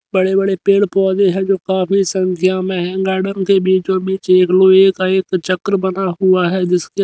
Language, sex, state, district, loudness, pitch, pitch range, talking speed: Hindi, male, Haryana, Rohtak, -14 LUFS, 190 Hz, 185-195 Hz, 195 wpm